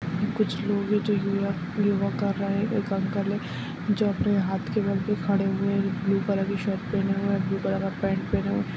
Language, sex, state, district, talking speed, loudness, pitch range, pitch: Kumaoni, male, Uttarakhand, Uttarkashi, 240 wpm, -26 LUFS, 195-205 Hz, 200 Hz